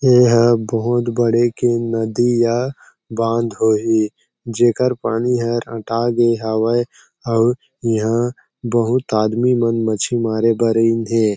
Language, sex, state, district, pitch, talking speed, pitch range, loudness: Chhattisgarhi, male, Chhattisgarh, Jashpur, 115 Hz, 135 wpm, 115-120 Hz, -17 LUFS